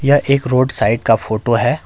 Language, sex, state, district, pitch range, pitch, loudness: Hindi, male, Jharkhand, Ranchi, 115-135 Hz, 125 Hz, -14 LUFS